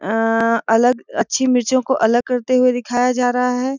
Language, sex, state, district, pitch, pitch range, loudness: Hindi, female, Jharkhand, Sahebganj, 245 Hz, 230-255 Hz, -17 LUFS